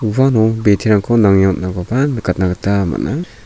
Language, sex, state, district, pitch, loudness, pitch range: Garo, male, Meghalaya, South Garo Hills, 100 Hz, -15 LUFS, 95-115 Hz